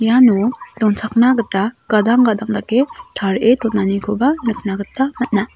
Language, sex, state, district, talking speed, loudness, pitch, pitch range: Garo, female, Meghalaya, South Garo Hills, 120 wpm, -16 LUFS, 225 Hz, 205-250 Hz